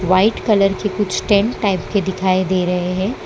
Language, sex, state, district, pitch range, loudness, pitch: Hindi, female, Gujarat, Valsad, 185-205 Hz, -17 LUFS, 195 Hz